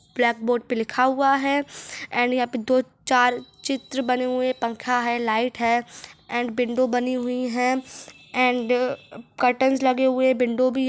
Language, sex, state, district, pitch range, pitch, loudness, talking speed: Hindi, male, Chhattisgarh, Rajnandgaon, 245-255 Hz, 250 Hz, -23 LUFS, 160 wpm